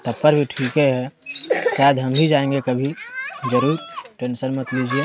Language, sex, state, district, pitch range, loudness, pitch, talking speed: Hindi, male, Chhattisgarh, Sarguja, 130-150 Hz, -20 LUFS, 140 Hz, 140 wpm